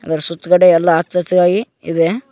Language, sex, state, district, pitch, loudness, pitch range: Kannada, male, Karnataka, Koppal, 180 Hz, -14 LUFS, 165-180 Hz